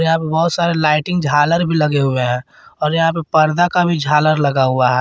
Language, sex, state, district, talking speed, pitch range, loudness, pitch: Hindi, male, Jharkhand, Garhwa, 240 wpm, 145-165 Hz, -15 LUFS, 155 Hz